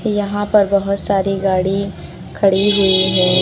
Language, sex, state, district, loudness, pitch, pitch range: Hindi, female, Uttar Pradesh, Lucknow, -15 LUFS, 195 Hz, 190-205 Hz